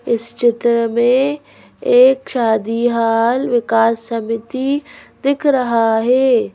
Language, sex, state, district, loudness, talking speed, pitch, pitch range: Hindi, female, Madhya Pradesh, Bhopal, -15 LUFS, 100 wpm, 240 Hz, 230-260 Hz